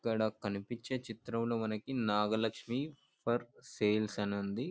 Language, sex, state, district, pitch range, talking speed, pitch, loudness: Telugu, male, Andhra Pradesh, Anantapur, 105-120 Hz, 125 wpm, 110 Hz, -36 LUFS